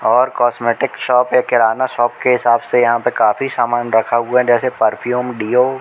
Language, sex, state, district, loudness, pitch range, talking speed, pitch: Hindi, male, Madhya Pradesh, Katni, -15 LUFS, 120-125 Hz, 205 wpm, 120 Hz